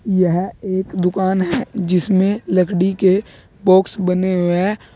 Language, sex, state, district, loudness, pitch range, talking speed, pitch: Hindi, male, Uttar Pradesh, Saharanpur, -17 LUFS, 180-195 Hz, 135 wpm, 185 Hz